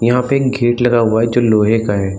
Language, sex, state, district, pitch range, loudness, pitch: Hindi, male, Chhattisgarh, Bilaspur, 110-120 Hz, -14 LUFS, 115 Hz